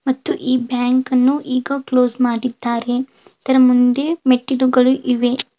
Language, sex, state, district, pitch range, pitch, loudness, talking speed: Kannada, female, Karnataka, Belgaum, 245-265 Hz, 255 Hz, -17 LUFS, 105 wpm